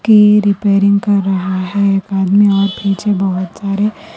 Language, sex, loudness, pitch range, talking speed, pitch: Urdu, female, -13 LUFS, 195-205 Hz, 160 wpm, 200 Hz